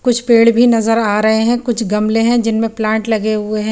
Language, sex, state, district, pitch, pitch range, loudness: Hindi, female, Chandigarh, Chandigarh, 225 Hz, 215-235 Hz, -14 LUFS